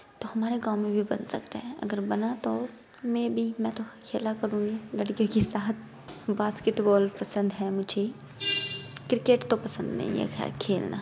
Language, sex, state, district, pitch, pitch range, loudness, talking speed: Bhojpuri, female, Uttar Pradesh, Deoria, 220 Hz, 210-230 Hz, -29 LUFS, 175 wpm